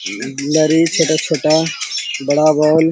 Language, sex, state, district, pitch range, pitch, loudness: Hindi, male, Bihar, Gaya, 150-160 Hz, 155 Hz, -15 LUFS